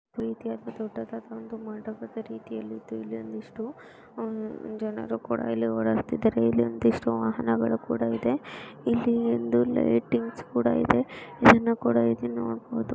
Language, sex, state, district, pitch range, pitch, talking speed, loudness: Kannada, female, Karnataka, Mysore, 115-120 Hz, 115 Hz, 110 wpm, -27 LUFS